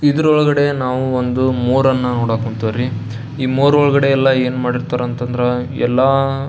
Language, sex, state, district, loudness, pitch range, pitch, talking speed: Kannada, male, Karnataka, Belgaum, -16 LUFS, 125-135 Hz, 130 Hz, 155 wpm